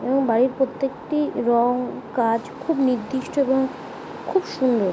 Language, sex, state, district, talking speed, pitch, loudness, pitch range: Bengali, female, West Bengal, Paschim Medinipur, 120 wpm, 260 Hz, -22 LUFS, 240-270 Hz